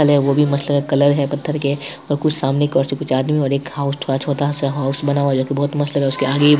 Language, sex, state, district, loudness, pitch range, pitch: Hindi, male, Bihar, Saharsa, -18 LUFS, 140-145 Hz, 140 Hz